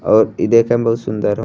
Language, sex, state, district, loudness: Bhojpuri, male, Uttar Pradesh, Gorakhpur, -15 LUFS